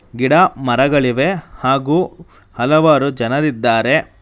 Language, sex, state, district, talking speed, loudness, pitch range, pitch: Kannada, male, Karnataka, Bangalore, 70 wpm, -15 LUFS, 125-155 Hz, 135 Hz